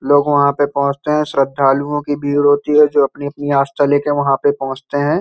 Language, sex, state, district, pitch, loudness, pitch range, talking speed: Hindi, male, Uttar Pradesh, Hamirpur, 145 Hz, -15 LUFS, 140-145 Hz, 230 wpm